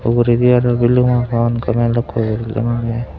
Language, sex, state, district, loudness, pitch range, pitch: Chakma, male, Tripura, Dhalai, -16 LUFS, 115-120 Hz, 120 Hz